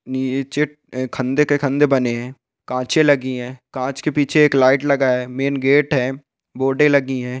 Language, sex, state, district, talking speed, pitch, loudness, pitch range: Hindi, male, Bihar, Bhagalpur, 180 wpm, 135 Hz, -18 LUFS, 130-145 Hz